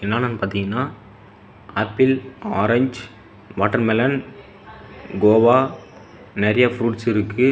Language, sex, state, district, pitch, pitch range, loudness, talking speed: Tamil, male, Tamil Nadu, Namakkal, 110 Hz, 100-125 Hz, -19 LUFS, 70 wpm